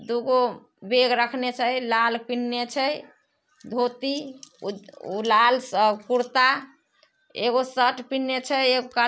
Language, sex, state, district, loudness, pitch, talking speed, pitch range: Maithili, female, Bihar, Samastipur, -23 LUFS, 250 Hz, 110 wpm, 240-270 Hz